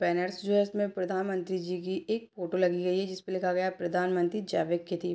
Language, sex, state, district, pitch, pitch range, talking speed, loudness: Hindi, female, Bihar, Sitamarhi, 185 Hz, 180-190 Hz, 220 wpm, -31 LUFS